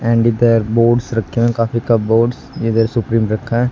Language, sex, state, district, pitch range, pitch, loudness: Hindi, male, Haryana, Charkhi Dadri, 115-120 Hz, 115 Hz, -15 LUFS